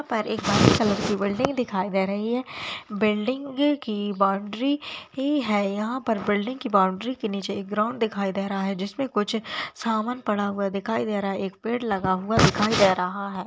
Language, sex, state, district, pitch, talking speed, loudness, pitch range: Hindi, female, Rajasthan, Nagaur, 210 Hz, 205 wpm, -25 LUFS, 195-235 Hz